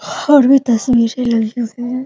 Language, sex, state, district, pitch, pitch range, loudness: Hindi, female, Bihar, Muzaffarpur, 245 Hz, 235-265 Hz, -14 LUFS